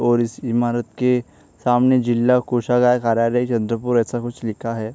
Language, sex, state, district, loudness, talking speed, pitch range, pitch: Hindi, male, Maharashtra, Chandrapur, -19 LUFS, 160 wpm, 115-125 Hz, 120 Hz